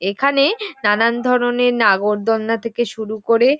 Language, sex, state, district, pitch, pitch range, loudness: Bengali, female, West Bengal, North 24 Parganas, 230 Hz, 220-250 Hz, -17 LUFS